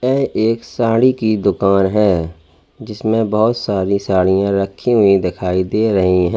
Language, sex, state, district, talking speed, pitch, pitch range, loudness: Hindi, male, Uttar Pradesh, Lalitpur, 150 wpm, 100 Hz, 95-110 Hz, -15 LUFS